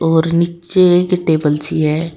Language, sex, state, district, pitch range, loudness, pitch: Hindi, female, Uttar Pradesh, Shamli, 160-175 Hz, -14 LUFS, 165 Hz